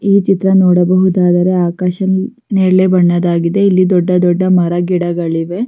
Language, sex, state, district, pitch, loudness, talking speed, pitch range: Kannada, female, Karnataka, Raichur, 185 Hz, -12 LUFS, 115 wpm, 175-190 Hz